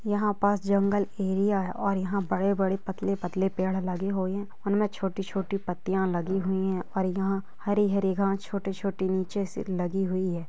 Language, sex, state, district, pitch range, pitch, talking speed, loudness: Hindi, female, Jharkhand, Sahebganj, 190-200 Hz, 195 Hz, 165 wpm, -28 LUFS